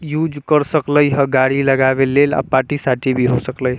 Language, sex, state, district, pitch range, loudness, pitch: Bajjika, male, Bihar, Vaishali, 130-145 Hz, -15 LUFS, 135 Hz